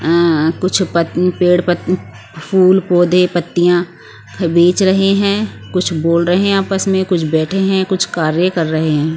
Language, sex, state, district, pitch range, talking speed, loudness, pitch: Hindi, female, Bihar, West Champaran, 165-190 Hz, 165 wpm, -14 LUFS, 175 Hz